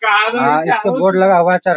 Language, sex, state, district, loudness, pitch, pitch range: Hindi, male, Bihar, Sitamarhi, -13 LUFS, 190 Hz, 180-215 Hz